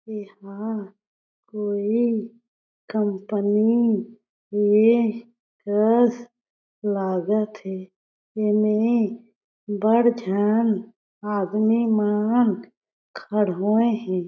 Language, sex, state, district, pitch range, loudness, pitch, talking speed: Chhattisgarhi, female, Chhattisgarh, Jashpur, 205-230 Hz, -22 LUFS, 215 Hz, 65 wpm